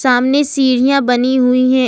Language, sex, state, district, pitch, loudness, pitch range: Hindi, female, Jharkhand, Ranchi, 260 Hz, -13 LUFS, 250-270 Hz